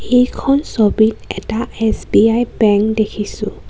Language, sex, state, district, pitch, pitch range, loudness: Assamese, female, Assam, Kamrup Metropolitan, 220 Hz, 215-235 Hz, -15 LUFS